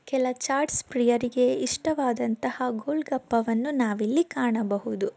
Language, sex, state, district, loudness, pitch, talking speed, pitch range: Kannada, female, Karnataka, Dakshina Kannada, -26 LUFS, 250 Hz, 80 wpm, 235-280 Hz